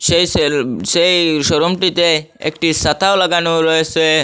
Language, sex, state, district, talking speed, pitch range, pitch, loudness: Bengali, male, Assam, Hailakandi, 100 wpm, 160-175 Hz, 165 Hz, -14 LUFS